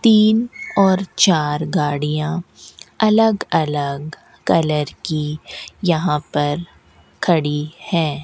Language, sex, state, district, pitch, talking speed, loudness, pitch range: Hindi, female, Rajasthan, Bikaner, 160 Hz, 85 wpm, -19 LUFS, 150-190 Hz